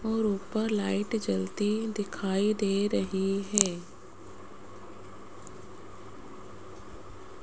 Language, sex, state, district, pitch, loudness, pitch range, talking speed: Hindi, female, Rajasthan, Jaipur, 200 Hz, -29 LUFS, 175-210 Hz, 65 wpm